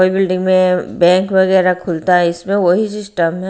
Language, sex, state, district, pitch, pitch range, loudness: Hindi, female, Bihar, Patna, 185 Hz, 180-190 Hz, -14 LUFS